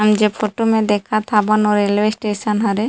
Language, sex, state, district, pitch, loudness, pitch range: Chhattisgarhi, female, Chhattisgarh, Rajnandgaon, 210 Hz, -17 LUFS, 210-215 Hz